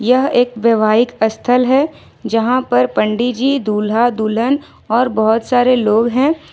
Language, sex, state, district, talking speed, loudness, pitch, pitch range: Hindi, female, Jharkhand, Ranchi, 145 wpm, -15 LUFS, 240 Hz, 220-255 Hz